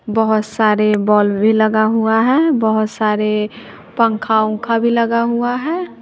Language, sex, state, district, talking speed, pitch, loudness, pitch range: Hindi, female, Bihar, West Champaran, 140 wpm, 220 Hz, -15 LUFS, 215-230 Hz